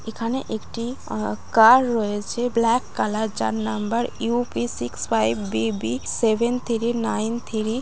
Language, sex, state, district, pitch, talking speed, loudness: Bengali, female, West Bengal, Malda, 220 Hz, 140 wpm, -22 LUFS